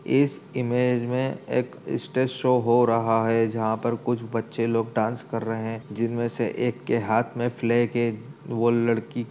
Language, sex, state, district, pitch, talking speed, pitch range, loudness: Hindi, male, Uttar Pradesh, Budaun, 120 Hz, 185 wpm, 115-125 Hz, -25 LUFS